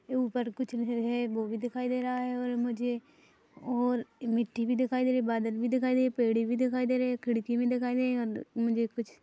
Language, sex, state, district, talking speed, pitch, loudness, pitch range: Hindi, female, Chhattisgarh, Rajnandgaon, 235 wpm, 245 Hz, -31 LUFS, 235-255 Hz